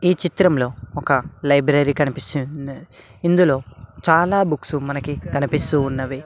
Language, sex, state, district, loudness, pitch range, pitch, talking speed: Telugu, male, Telangana, Mahabubabad, -19 LUFS, 135-155 Hz, 145 Hz, 105 wpm